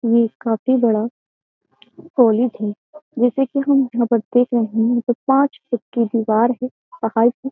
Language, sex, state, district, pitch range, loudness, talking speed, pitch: Hindi, female, Uttar Pradesh, Jyotiba Phule Nagar, 230-260 Hz, -18 LUFS, 160 wpm, 240 Hz